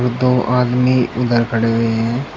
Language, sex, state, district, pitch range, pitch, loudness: Hindi, male, Uttar Pradesh, Shamli, 115-125 Hz, 125 Hz, -16 LUFS